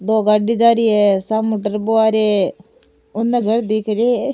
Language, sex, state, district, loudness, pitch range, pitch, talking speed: Rajasthani, female, Rajasthan, Nagaur, -16 LUFS, 210-230 Hz, 220 Hz, 205 wpm